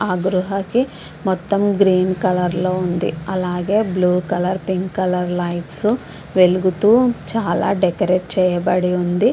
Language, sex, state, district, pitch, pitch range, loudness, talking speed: Telugu, female, Andhra Pradesh, Visakhapatnam, 185 Hz, 180-195 Hz, -18 LUFS, 130 wpm